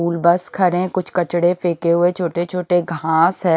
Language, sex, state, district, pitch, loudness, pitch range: Hindi, female, Punjab, Kapurthala, 175 Hz, -18 LUFS, 170-180 Hz